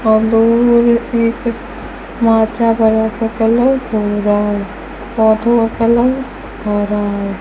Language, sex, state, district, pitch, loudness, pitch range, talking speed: Hindi, female, Rajasthan, Bikaner, 225 Hz, -14 LUFS, 215-235 Hz, 95 wpm